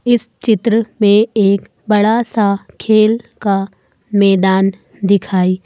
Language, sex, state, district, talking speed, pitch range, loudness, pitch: Hindi, female, Madhya Pradesh, Bhopal, 105 wpm, 195-220 Hz, -14 LUFS, 205 Hz